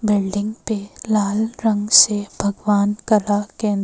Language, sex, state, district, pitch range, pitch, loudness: Hindi, female, Madhya Pradesh, Bhopal, 205-215 Hz, 210 Hz, -18 LUFS